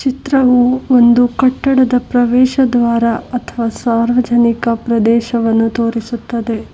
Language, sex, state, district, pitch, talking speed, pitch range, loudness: Kannada, female, Karnataka, Bangalore, 240 Hz, 80 wpm, 230-250 Hz, -13 LUFS